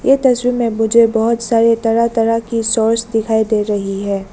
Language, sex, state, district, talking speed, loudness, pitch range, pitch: Hindi, female, Arunachal Pradesh, Lower Dibang Valley, 195 wpm, -15 LUFS, 220-230 Hz, 225 Hz